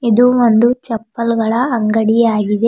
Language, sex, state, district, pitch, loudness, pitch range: Kannada, female, Karnataka, Bidar, 230 Hz, -14 LUFS, 225-240 Hz